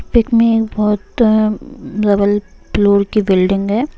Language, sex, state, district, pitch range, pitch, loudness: Hindi, female, Bihar, Sitamarhi, 200-230 Hz, 215 Hz, -14 LUFS